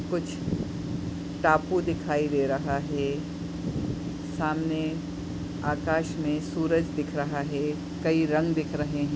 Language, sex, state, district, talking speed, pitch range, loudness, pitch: Hindi, female, Goa, North and South Goa, 120 wpm, 150-155 Hz, -28 LUFS, 150 Hz